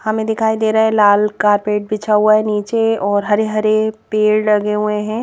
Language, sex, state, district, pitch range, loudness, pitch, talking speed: Hindi, female, Madhya Pradesh, Bhopal, 210-220 Hz, -15 LUFS, 215 Hz, 195 wpm